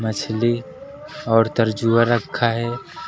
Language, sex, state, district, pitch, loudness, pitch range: Hindi, male, Uttar Pradesh, Lucknow, 115 Hz, -20 LUFS, 115-130 Hz